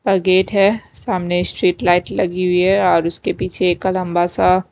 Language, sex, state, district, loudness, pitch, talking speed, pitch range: Hindi, female, Himachal Pradesh, Shimla, -17 LUFS, 185 Hz, 165 wpm, 180-195 Hz